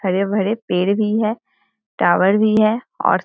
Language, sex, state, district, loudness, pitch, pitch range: Hindi, female, Bihar, Vaishali, -17 LUFS, 215 Hz, 195-215 Hz